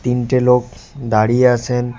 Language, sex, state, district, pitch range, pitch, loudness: Bengali, male, West Bengal, Cooch Behar, 120-125 Hz, 125 Hz, -15 LUFS